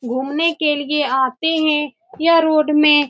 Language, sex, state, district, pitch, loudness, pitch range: Hindi, female, Bihar, Saran, 300 Hz, -16 LUFS, 290-320 Hz